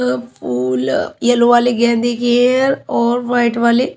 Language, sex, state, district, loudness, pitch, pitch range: Hindi, female, Haryana, Charkhi Dadri, -15 LUFS, 240 Hz, 230-245 Hz